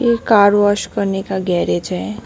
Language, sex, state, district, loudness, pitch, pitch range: Hindi, female, West Bengal, Alipurduar, -16 LUFS, 200 Hz, 190-205 Hz